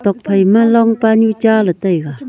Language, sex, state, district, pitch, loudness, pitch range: Wancho, female, Arunachal Pradesh, Longding, 210 Hz, -12 LUFS, 190-225 Hz